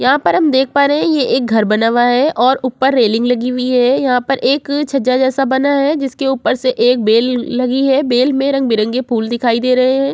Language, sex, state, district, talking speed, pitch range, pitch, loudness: Hindi, female, Uttar Pradesh, Jyotiba Phule Nagar, 230 wpm, 245-270 Hz, 255 Hz, -14 LUFS